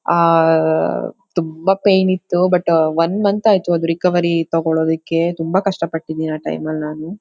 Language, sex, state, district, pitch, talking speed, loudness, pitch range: Kannada, female, Karnataka, Shimoga, 165 Hz, 150 wpm, -17 LUFS, 160-185 Hz